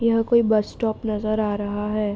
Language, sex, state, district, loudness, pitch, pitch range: Hindi, female, Bihar, Araria, -22 LUFS, 215 Hz, 210-225 Hz